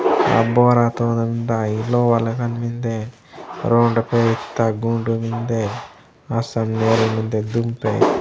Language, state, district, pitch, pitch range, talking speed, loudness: Gondi, Chhattisgarh, Sukma, 115 Hz, 115-120 Hz, 115 wpm, -19 LUFS